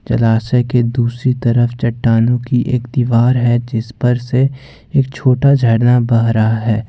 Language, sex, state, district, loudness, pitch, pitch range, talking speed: Hindi, male, Jharkhand, Ranchi, -14 LUFS, 120 Hz, 115-125 Hz, 155 wpm